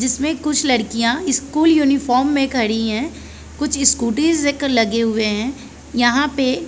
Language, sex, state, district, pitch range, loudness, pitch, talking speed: Hindi, female, Chhattisgarh, Bilaspur, 235-290 Hz, -17 LUFS, 265 Hz, 135 wpm